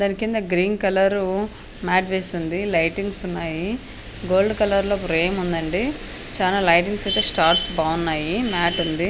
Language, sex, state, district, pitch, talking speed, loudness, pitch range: Telugu, female, Andhra Pradesh, Anantapur, 185 Hz, 140 wpm, -21 LUFS, 170-200 Hz